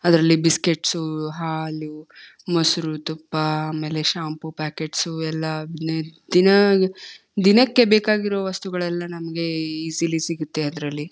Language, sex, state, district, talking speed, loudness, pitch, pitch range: Kannada, female, Karnataka, Gulbarga, 85 wpm, -21 LUFS, 160 Hz, 155-175 Hz